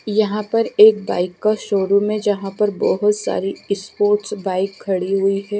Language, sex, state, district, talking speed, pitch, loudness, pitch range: Hindi, female, Odisha, Malkangiri, 170 wpm, 205 Hz, -18 LUFS, 195-210 Hz